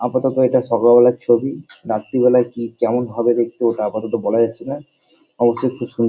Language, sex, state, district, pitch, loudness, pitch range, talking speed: Bengali, male, West Bengal, Dakshin Dinajpur, 120 Hz, -17 LUFS, 115-125 Hz, 175 wpm